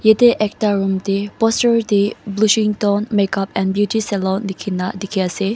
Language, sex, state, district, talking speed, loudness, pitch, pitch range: Nagamese, female, Mizoram, Aizawl, 150 wpm, -17 LUFS, 200 Hz, 195-215 Hz